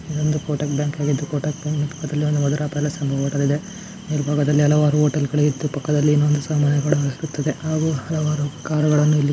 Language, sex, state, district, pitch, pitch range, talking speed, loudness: Kannada, male, Karnataka, Dharwad, 150 Hz, 145-150 Hz, 140 wpm, -21 LUFS